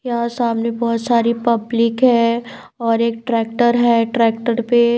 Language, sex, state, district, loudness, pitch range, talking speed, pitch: Hindi, female, Bihar, Patna, -17 LUFS, 230-240 Hz, 145 wpm, 235 Hz